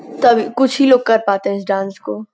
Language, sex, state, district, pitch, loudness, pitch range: Hindi, female, Uttar Pradesh, Gorakhpur, 220 Hz, -15 LUFS, 195-250 Hz